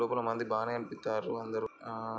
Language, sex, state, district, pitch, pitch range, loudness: Telugu, male, Andhra Pradesh, Srikakulam, 115 Hz, 110-115 Hz, -35 LUFS